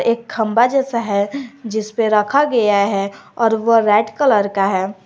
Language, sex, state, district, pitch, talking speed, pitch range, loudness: Hindi, female, Jharkhand, Garhwa, 220 Hz, 165 wpm, 205-235 Hz, -16 LUFS